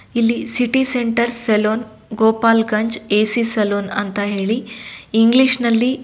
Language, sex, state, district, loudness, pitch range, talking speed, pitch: Kannada, female, Karnataka, Shimoga, -17 LUFS, 215-235 Hz, 120 wpm, 225 Hz